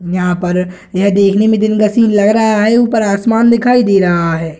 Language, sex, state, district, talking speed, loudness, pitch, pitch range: Hindi, male, Bihar, Gaya, 220 wpm, -11 LUFS, 205 Hz, 180-220 Hz